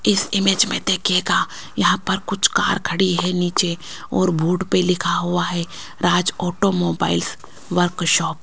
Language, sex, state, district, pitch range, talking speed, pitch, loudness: Hindi, female, Rajasthan, Jaipur, 175-190 Hz, 155 wpm, 180 Hz, -19 LUFS